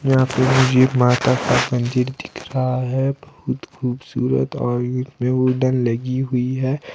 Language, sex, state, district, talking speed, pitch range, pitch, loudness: Hindi, male, Himachal Pradesh, Shimla, 155 wpm, 125-130 Hz, 130 Hz, -19 LUFS